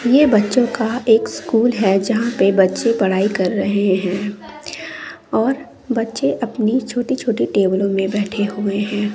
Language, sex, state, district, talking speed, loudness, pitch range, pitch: Hindi, female, Bihar, West Champaran, 150 wpm, -17 LUFS, 200-245 Hz, 220 Hz